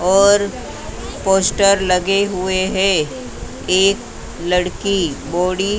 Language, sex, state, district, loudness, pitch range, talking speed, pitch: Hindi, female, Maharashtra, Mumbai Suburban, -16 LUFS, 180-195 Hz, 95 wpm, 190 Hz